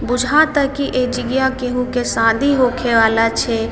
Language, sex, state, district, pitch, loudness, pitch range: Maithili, female, Bihar, Samastipur, 250 Hz, -16 LUFS, 230-265 Hz